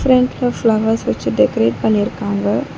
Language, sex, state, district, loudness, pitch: Tamil, female, Tamil Nadu, Chennai, -16 LUFS, 210 Hz